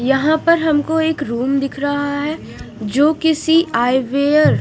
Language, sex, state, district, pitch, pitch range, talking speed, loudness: Hindi, female, Punjab, Fazilka, 285 Hz, 270-315 Hz, 170 wpm, -16 LUFS